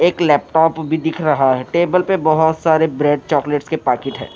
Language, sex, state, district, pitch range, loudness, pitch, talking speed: Hindi, male, Himachal Pradesh, Shimla, 145-160 Hz, -16 LUFS, 160 Hz, 205 wpm